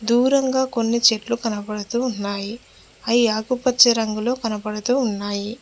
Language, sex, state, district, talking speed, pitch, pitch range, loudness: Telugu, female, Telangana, Mahabubabad, 105 wpm, 230 Hz, 215-250 Hz, -20 LUFS